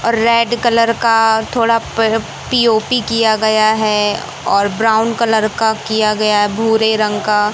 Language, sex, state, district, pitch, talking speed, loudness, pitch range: Hindi, male, Madhya Pradesh, Katni, 220 Hz, 150 wpm, -14 LUFS, 215-230 Hz